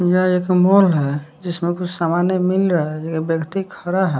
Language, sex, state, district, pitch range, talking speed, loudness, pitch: Hindi, male, Bihar, West Champaran, 160-185 Hz, 200 wpm, -18 LUFS, 175 Hz